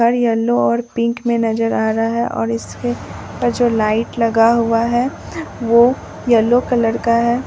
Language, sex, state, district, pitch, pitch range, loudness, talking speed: Hindi, male, Bihar, Katihar, 230 Hz, 220-235 Hz, -16 LUFS, 175 wpm